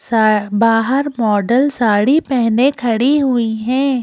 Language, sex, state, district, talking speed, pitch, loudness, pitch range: Hindi, female, Madhya Pradesh, Bhopal, 120 wpm, 240 Hz, -15 LUFS, 225-270 Hz